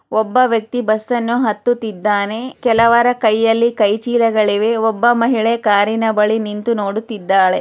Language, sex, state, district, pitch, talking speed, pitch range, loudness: Kannada, female, Karnataka, Chamarajanagar, 225 Hz, 125 wpm, 210-235 Hz, -15 LUFS